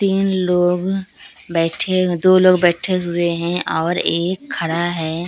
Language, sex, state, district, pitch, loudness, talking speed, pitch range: Hindi, female, Bihar, Katihar, 175 Hz, -17 LUFS, 135 wpm, 170-185 Hz